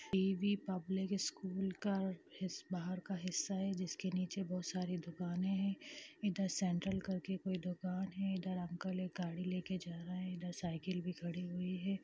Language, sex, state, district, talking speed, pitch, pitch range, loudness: Hindi, female, Bihar, Gaya, 180 wpm, 185 Hz, 180-195 Hz, -41 LUFS